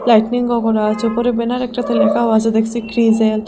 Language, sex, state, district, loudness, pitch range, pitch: Bengali, female, Assam, Hailakandi, -16 LUFS, 220-240 Hz, 230 Hz